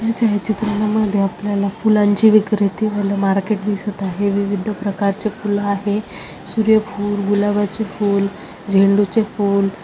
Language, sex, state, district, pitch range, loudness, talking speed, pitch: Marathi, female, Maharashtra, Chandrapur, 200-215 Hz, -18 LUFS, 140 wpm, 205 Hz